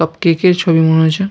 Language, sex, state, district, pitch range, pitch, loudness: Bengali, male, West Bengal, Jalpaiguri, 160-180 Hz, 165 Hz, -12 LUFS